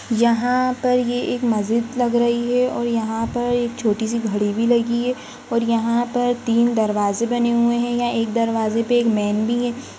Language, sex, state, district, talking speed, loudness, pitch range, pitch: Hindi, female, Uttar Pradesh, Jyotiba Phule Nagar, 205 wpm, -20 LUFS, 230-245 Hz, 235 Hz